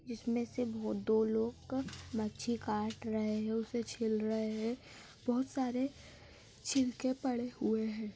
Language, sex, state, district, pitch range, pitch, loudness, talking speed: Hindi, female, West Bengal, Kolkata, 220-245 Hz, 230 Hz, -36 LUFS, 140 wpm